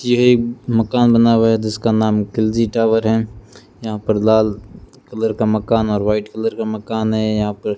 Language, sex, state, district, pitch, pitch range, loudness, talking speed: Hindi, male, Rajasthan, Bikaner, 110 Hz, 110-115 Hz, -17 LUFS, 195 wpm